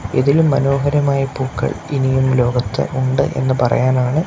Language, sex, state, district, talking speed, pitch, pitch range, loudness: Malayalam, male, Kerala, Kasaragod, 110 wpm, 130 Hz, 130-140 Hz, -16 LUFS